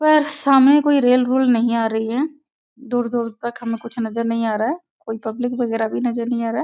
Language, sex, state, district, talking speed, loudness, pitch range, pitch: Hindi, female, Bihar, Sitamarhi, 260 wpm, -19 LUFS, 230-270 Hz, 240 Hz